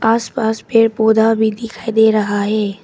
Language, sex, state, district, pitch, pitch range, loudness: Hindi, female, Arunachal Pradesh, Papum Pare, 220 Hz, 215-225 Hz, -15 LUFS